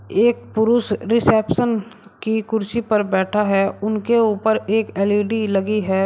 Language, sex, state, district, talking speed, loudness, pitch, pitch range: Hindi, male, Uttar Pradesh, Shamli, 140 wpm, -19 LUFS, 215 Hz, 200-225 Hz